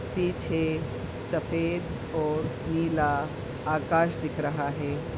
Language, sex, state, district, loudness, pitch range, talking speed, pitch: Hindi, male, Uttar Pradesh, Ghazipur, -29 LUFS, 145-165 Hz, 95 wpm, 155 Hz